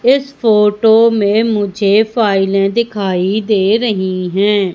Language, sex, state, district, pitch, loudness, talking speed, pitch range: Hindi, female, Madhya Pradesh, Umaria, 210 Hz, -13 LUFS, 115 wpm, 195-225 Hz